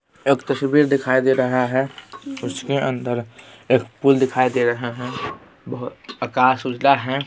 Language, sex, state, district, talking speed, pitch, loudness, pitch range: Hindi, male, Bihar, Patna, 150 wpm, 130 Hz, -20 LUFS, 125-140 Hz